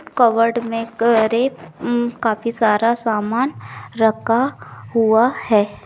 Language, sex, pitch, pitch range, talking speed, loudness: Maithili, female, 230 Hz, 225-240 Hz, 100 wpm, -18 LUFS